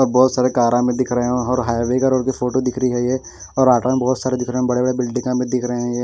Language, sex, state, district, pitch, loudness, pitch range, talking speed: Hindi, male, Bihar, West Champaran, 125 Hz, -18 LUFS, 125-130 Hz, 280 wpm